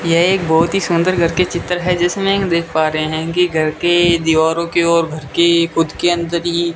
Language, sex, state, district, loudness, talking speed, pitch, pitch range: Hindi, male, Rajasthan, Bikaner, -15 LUFS, 250 wpm, 170 Hz, 165-175 Hz